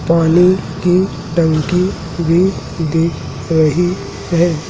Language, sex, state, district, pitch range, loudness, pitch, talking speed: Hindi, male, Madhya Pradesh, Dhar, 160-175 Hz, -15 LUFS, 165 Hz, 90 wpm